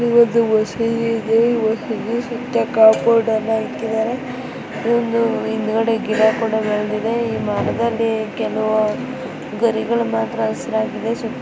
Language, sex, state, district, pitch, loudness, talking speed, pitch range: Kannada, female, Karnataka, Mysore, 225 Hz, -19 LUFS, 95 wpm, 220-235 Hz